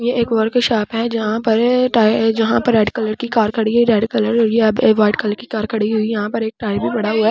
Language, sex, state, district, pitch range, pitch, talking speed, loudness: Hindi, female, Delhi, New Delhi, 215-230 Hz, 225 Hz, 270 wpm, -16 LUFS